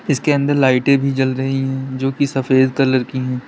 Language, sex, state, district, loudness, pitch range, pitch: Hindi, male, Uttar Pradesh, Lalitpur, -17 LUFS, 130-140 Hz, 135 Hz